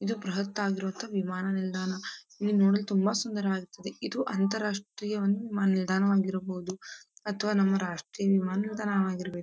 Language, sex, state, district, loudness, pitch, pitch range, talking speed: Kannada, female, Karnataka, Dharwad, -30 LUFS, 195 Hz, 190-210 Hz, 125 wpm